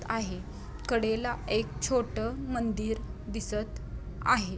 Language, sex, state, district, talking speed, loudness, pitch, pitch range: Marathi, female, Maharashtra, Dhule, 90 wpm, -32 LUFS, 235 Hz, 225-245 Hz